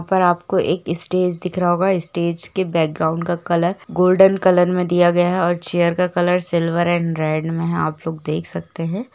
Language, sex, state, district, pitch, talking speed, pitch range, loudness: Hindi, female, Jharkhand, Jamtara, 175 Hz, 215 wpm, 165-180 Hz, -18 LUFS